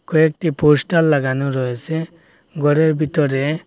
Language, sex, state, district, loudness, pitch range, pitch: Bengali, male, Assam, Hailakandi, -17 LUFS, 140-160 Hz, 155 Hz